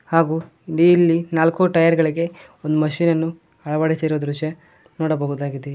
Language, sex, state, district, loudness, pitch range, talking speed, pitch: Kannada, male, Karnataka, Koppal, -19 LUFS, 155-165 Hz, 115 wpm, 160 Hz